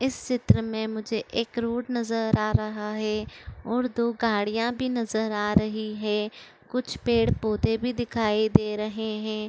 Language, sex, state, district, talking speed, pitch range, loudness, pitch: Chhattisgarhi, female, Chhattisgarh, Korba, 165 wpm, 215-235 Hz, -26 LUFS, 220 Hz